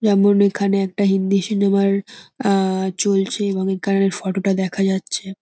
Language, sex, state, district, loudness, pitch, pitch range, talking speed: Bengali, female, West Bengal, North 24 Parganas, -19 LUFS, 195 Hz, 190-200 Hz, 145 wpm